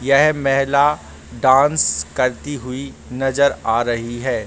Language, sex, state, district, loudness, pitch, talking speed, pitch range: Hindi, male, Bihar, Gaya, -17 LUFS, 135 Hz, 120 wpm, 120-140 Hz